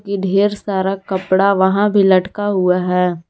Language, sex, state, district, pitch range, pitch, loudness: Hindi, female, Jharkhand, Garhwa, 185-200 Hz, 190 Hz, -15 LUFS